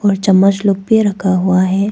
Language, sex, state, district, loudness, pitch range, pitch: Hindi, female, Arunachal Pradesh, Papum Pare, -13 LUFS, 190-200 Hz, 195 Hz